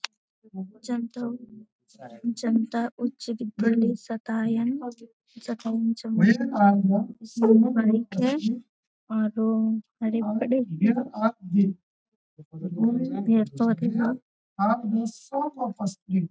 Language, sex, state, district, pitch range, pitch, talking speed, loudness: Hindi, female, Bihar, Jamui, 215-235 Hz, 225 Hz, 40 wpm, -25 LUFS